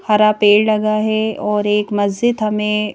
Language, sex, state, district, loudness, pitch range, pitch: Hindi, female, Madhya Pradesh, Bhopal, -15 LUFS, 210-215 Hz, 210 Hz